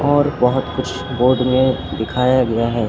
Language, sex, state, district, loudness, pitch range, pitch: Hindi, female, Uttar Pradesh, Lucknow, -17 LUFS, 120-130 Hz, 125 Hz